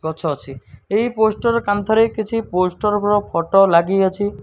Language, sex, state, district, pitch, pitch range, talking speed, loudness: Odia, male, Odisha, Malkangiri, 205 Hz, 175-220 Hz, 165 wpm, -17 LUFS